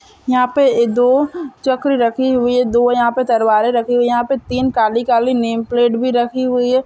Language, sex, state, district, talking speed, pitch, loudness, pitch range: Hindi, female, Chhattisgarh, Bastar, 210 wpm, 245 Hz, -15 LUFS, 235-255 Hz